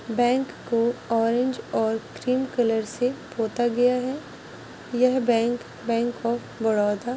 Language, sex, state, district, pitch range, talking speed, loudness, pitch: Hindi, female, Andhra Pradesh, Chittoor, 230-250 Hz, 135 wpm, -24 LUFS, 240 Hz